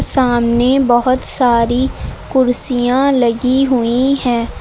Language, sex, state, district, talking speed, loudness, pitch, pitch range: Hindi, female, Uttar Pradesh, Lucknow, 90 wpm, -14 LUFS, 250 Hz, 240-260 Hz